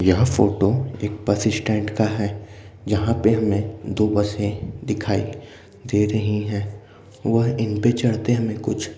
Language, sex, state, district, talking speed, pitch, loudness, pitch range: Hindi, male, Uttar Pradesh, Ghazipur, 145 wpm, 105 Hz, -22 LUFS, 105-110 Hz